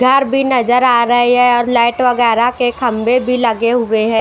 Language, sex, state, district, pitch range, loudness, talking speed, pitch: Hindi, female, Bihar, West Champaran, 235-250 Hz, -13 LUFS, 215 wpm, 245 Hz